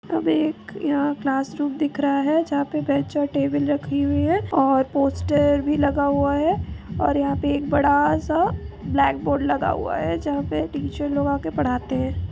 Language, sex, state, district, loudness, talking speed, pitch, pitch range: Hindi, female, Jharkhand, Sahebganj, -22 LUFS, 170 wpm, 285 Hz, 280-290 Hz